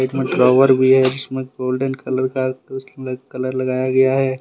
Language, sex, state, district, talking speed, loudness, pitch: Hindi, male, Jharkhand, Deoghar, 150 wpm, -17 LUFS, 130 Hz